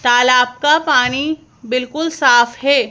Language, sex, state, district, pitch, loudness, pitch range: Hindi, female, Madhya Pradesh, Bhopal, 255 Hz, -14 LUFS, 245-300 Hz